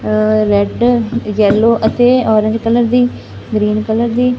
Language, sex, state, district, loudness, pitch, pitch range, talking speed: Punjabi, female, Punjab, Fazilka, -13 LUFS, 225 Hz, 215-240 Hz, 125 wpm